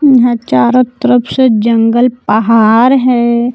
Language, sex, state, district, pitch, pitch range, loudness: Hindi, female, Jharkhand, Palamu, 240 Hz, 230-250 Hz, -9 LUFS